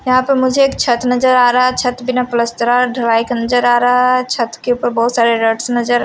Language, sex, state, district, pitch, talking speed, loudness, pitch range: Hindi, female, Haryana, Rohtak, 245 Hz, 265 wpm, -14 LUFS, 235-255 Hz